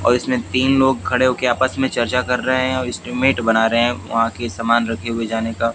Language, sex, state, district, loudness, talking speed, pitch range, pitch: Hindi, male, Haryana, Jhajjar, -18 LUFS, 260 wpm, 115-130 Hz, 120 Hz